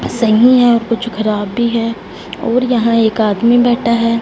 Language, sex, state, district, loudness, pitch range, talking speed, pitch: Hindi, female, Punjab, Fazilka, -13 LUFS, 225-240 Hz, 185 wpm, 230 Hz